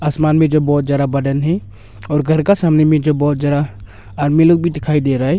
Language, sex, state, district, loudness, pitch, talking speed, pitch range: Hindi, male, Arunachal Pradesh, Longding, -15 LUFS, 150 Hz, 245 wpm, 140-155 Hz